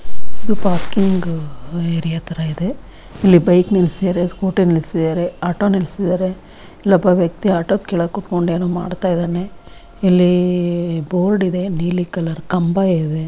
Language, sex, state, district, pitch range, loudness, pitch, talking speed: Kannada, female, Karnataka, Dakshina Kannada, 170-185 Hz, -17 LUFS, 180 Hz, 115 wpm